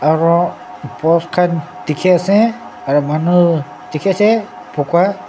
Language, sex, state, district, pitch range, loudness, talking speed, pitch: Nagamese, male, Nagaland, Dimapur, 145-180 Hz, -15 LUFS, 100 wpm, 165 Hz